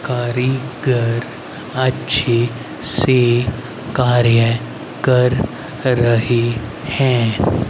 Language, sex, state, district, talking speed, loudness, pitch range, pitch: Hindi, male, Haryana, Rohtak, 55 wpm, -16 LUFS, 115-130 Hz, 120 Hz